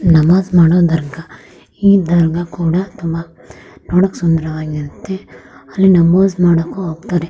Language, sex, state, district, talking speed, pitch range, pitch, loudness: Kannada, female, Karnataka, Raichur, 115 wpm, 155-180 Hz, 170 Hz, -14 LUFS